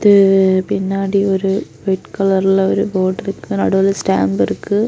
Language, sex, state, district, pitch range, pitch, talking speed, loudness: Tamil, female, Tamil Nadu, Kanyakumari, 185-195 Hz, 195 Hz, 135 wpm, -15 LUFS